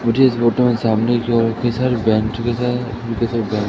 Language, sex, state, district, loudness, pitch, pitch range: Hindi, male, Madhya Pradesh, Katni, -18 LUFS, 115 Hz, 115-120 Hz